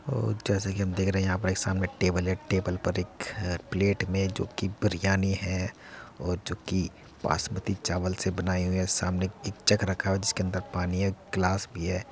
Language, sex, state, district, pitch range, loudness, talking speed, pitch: Hindi, male, Uttar Pradesh, Muzaffarnagar, 90-100 Hz, -29 LUFS, 205 wpm, 95 Hz